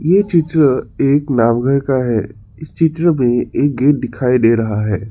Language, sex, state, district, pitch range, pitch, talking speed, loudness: Hindi, male, Assam, Sonitpur, 115-150 Hz, 130 Hz, 190 wpm, -15 LUFS